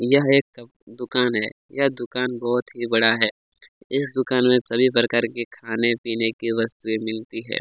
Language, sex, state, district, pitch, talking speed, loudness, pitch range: Hindi, male, Chhattisgarh, Kabirdham, 120 Hz, 165 wpm, -21 LUFS, 115-125 Hz